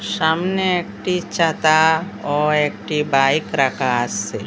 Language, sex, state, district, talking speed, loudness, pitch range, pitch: Bengali, female, Assam, Hailakandi, 120 wpm, -18 LUFS, 135-170 Hz, 155 Hz